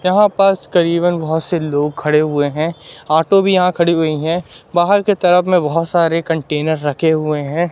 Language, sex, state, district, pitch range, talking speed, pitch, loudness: Hindi, male, Madhya Pradesh, Katni, 155-180 Hz, 195 wpm, 165 Hz, -15 LUFS